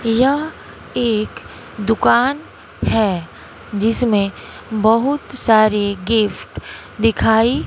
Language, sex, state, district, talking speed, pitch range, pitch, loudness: Hindi, female, Bihar, West Champaran, 70 wpm, 210-240 Hz, 225 Hz, -17 LUFS